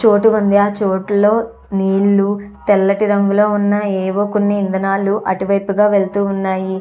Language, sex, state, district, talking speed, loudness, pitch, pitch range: Telugu, female, Andhra Pradesh, Chittoor, 140 wpm, -15 LUFS, 200 Hz, 195-205 Hz